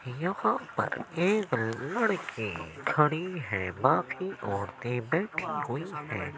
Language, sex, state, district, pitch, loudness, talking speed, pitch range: Hindi, male, Uttar Pradesh, Jyotiba Phule Nagar, 145 Hz, -30 LUFS, 105 wpm, 120-170 Hz